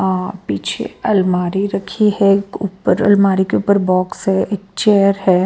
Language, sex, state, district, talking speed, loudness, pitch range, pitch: Hindi, female, Bihar, West Champaran, 155 wpm, -16 LUFS, 185-200 Hz, 195 Hz